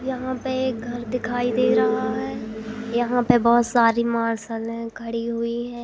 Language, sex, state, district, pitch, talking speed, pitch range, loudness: Hindi, female, Madhya Pradesh, Katni, 235 Hz, 165 wpm, 230-245 Hz, -23 LUFS